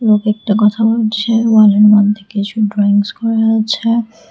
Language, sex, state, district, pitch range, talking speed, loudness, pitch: Bengali, female, Tripura, West Tripura, 210-225 Hz, 125 wpm, -12 LUFS, 215 Hz